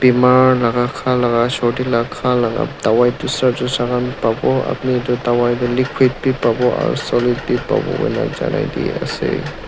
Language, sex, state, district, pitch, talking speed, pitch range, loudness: Nagamese, male, Nagaland, Dimapur, 125 Hz, 155 wpm, 120-130 Hz, -17 LUFS